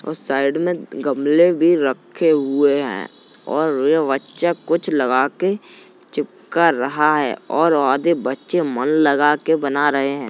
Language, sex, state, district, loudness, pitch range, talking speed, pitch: Hindi, male, Uttar Pradesh, Jalaun, -18 LUFS, 140-165 Hz, 155 wpm, 145 Hz